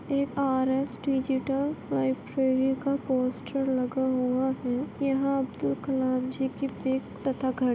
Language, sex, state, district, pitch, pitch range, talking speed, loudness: Hindi, female, Bihar, Saran, 265 Hz, 255-270 Hz, 115 wpm, -28 LUFS